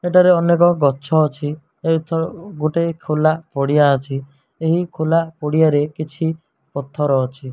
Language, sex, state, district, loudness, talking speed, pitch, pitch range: Odia, male, Odisha, Malkangiri, -18 LUFS, 110 wpm, 155 Hz, 145-165 Hz